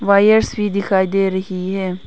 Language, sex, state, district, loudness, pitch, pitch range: Hindi, female, Arunachal Pradesh, Papum Pare, -17 LUFS, 195 Hz, 190-200 Hz